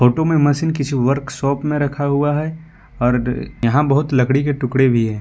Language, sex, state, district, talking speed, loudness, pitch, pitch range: Hindi, male, Jharkhand, Ranchi, 195 wpm, -17 LUFS, 140 Hz, 130-145 Hz